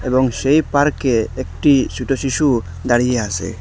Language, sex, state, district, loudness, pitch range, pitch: Bengali, male, Assam, Hailakandi, -17 LUFS, 115-140 Hz, 130 Hz